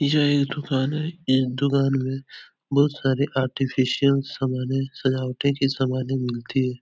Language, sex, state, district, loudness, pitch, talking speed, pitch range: Hindi, male, Uttar Pradesh, Etah, -23 LUFS, 135 Hz, 140 wpm, 130-140 Hz